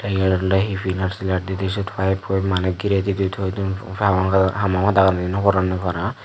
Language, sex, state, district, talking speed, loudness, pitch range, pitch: Chakma, male, Tripura, Dhalai, 180 wpm, -20 LUFS, 95-100 Hz, 95 Hz